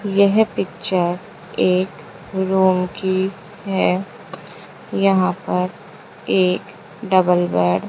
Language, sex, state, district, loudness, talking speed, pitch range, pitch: Hindi, female, Rajasthan, Jaipur, -19 LUFS, 90 wpm, 180-195 Hz, 190 Hz